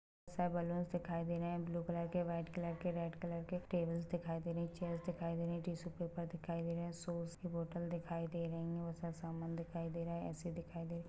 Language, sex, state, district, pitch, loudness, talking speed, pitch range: Hindi, female, Chhattisgarh, Rajnandgaon, 170 Hz, -43 LUFS, 260 wpm, 170-175 Hz